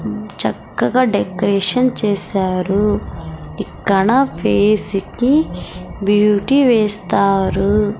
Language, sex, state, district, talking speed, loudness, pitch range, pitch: Telugu, female, Andhra Pradesh, Sri Satya Sai, 70 wpm, -16 LUFS, 195-225 Hz, 205 Hz